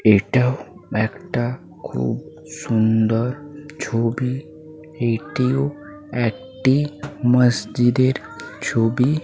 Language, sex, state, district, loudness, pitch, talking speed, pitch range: Bengali, male, West Bengal, Paschim Medinipur, -21 LUFS, 125 Hz, 60 wpm, 115-145 Hz